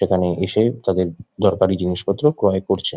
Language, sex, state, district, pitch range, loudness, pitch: Bengali, male, West Bengal, Jhargram, 90-105 Hz, -19 LUFS, 95 Hz